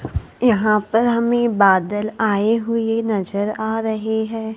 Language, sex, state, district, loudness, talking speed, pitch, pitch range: Hindi, female, Maharashtra, Gondia, -19 LUFS, 130 wpm, 220 Hz, 210-225 Hz